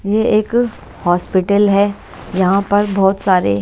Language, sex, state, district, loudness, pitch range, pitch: Hindi, female, Haryana, Jhajjar, -15 LUFS, 185-205 Hz, 200 Hz